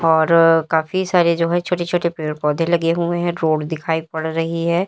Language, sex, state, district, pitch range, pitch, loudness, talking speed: Hindi, female, Uttar Pradesh, Lalitpur, 160-175 Hz, 165 Hz, -18 LUFS, 210 wpm